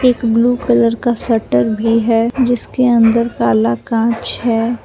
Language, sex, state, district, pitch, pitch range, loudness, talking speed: Hindi, female, Jharkhand, Palamu, 230 Hz, 225-240 Hz, -14 LUFS, 150 wpm